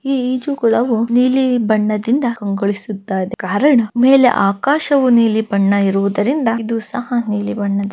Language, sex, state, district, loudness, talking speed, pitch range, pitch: Kannada, female, Karnataka, Bellary, -15 LUFS, 120 wpm, 205-255 Hz, 230 Hz